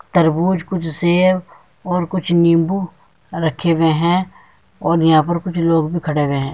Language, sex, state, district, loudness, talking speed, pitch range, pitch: Hindi, male, Uttar Pradesh, Muzaffarnagar, -17 LUFS, 155 wpm, 160-180 Hz, 170 Hz